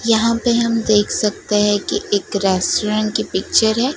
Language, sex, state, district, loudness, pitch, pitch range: Hindi, female, Gujarat, Gandhinagar, -17 LUFS, 215 Hz, 205-230 Hz